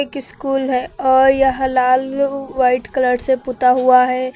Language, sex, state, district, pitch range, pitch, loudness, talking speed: Hindi, female, Uttar Pradesh, Lucknow, 255-270 Hz, 260 Hz, -16 LUFS, 165 wpm